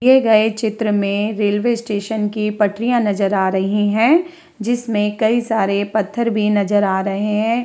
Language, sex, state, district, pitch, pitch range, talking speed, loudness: Hindi, female, Bihar, Vaishali, 215 Hz, 205-230 Hz, 165 wpm, -17 LUFS